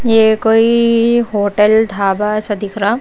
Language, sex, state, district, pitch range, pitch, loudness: Hindi, female, Chhattisgarh, Raipur, 205-230 Hz, 220 Hz, -13 LUFS